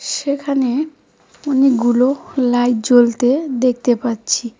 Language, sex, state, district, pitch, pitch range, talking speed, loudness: Bengali, female, West Bengal, Cooch Behar, 250 Hz, 240-275 Hz, 80 wpm, -16 LUFS